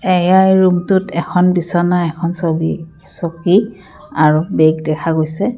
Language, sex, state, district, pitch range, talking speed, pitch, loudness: Assamese, female, Assam, Kamrup Metropolitan, 160-185 Hz, 130 wpm, 175 Hz, -14 LUFS